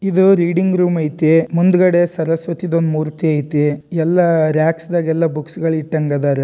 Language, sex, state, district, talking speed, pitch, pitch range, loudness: Kannada, male, Karnataka, Dharwad, 140 wpm, 165 Hz, 155-175 Hz, -16 LUFS